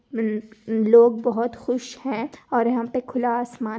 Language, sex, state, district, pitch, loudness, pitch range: Hindi, female, Rajasthan, Nagaur, 235 Hz, -22 LUFS, 225-245 Hz